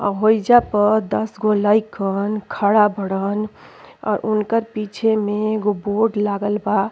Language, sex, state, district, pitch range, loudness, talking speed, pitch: Bhojpuri, female, Uttar Pradesh, Ghazipur, 205-215 Hz, -19 LUFS, 140 wpm, 210 Hz